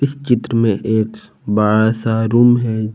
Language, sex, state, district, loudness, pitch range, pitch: Hindi, male, Jharkhand, Palamu, -15 LUFS, 110-120 Hz, 110 Hz